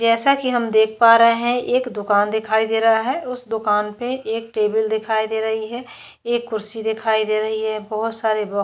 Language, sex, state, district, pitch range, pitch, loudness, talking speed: Hindi, female, Maharashtra, Chandrapur, 215-230 Hz, 220 Hz, -19 LUFS, 220 wpm